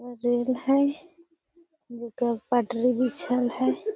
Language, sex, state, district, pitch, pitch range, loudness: Magahi, female, Bihar, Gaya, 250 Hz, 240-310 Hz, -26 LUFS